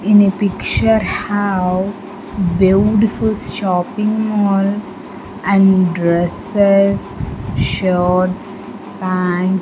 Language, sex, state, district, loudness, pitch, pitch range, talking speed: English, female, Andhra Pradesh, Sri Satya Sai, -15 LUFS, 195 Hz, 185-205 Hz, 75 wpm